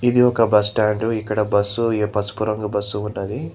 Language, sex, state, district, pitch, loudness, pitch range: Telugu, male, Telangana, Hyderabad, 105 Hz, -20 LUFS, 105-115 Hz